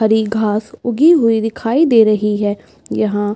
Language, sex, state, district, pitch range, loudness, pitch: Hindi, female, Uttar Pradesh, Budaun, 210-230 Hz, -15 LUFS, 220 Hz